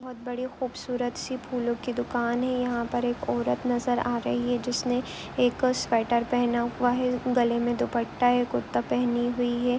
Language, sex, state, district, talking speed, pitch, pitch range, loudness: Hindi, female, Jharkhand, Sahebganj, 190 wpm, 245 Hz, 240-250 Hz, -27 LUFS